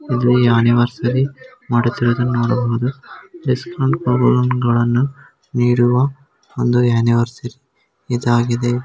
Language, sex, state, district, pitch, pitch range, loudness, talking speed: Kannada, male, Karnataka, Dharwad, 125 Hz, 120-130 Hz, -17 LUFS, 75 wpm